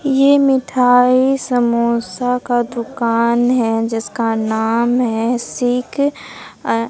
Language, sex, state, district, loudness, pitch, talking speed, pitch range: Hindi, female, Bihar, Katihar, -16 LUFS, 240 Hz, 95 wpm, 230-250 Hz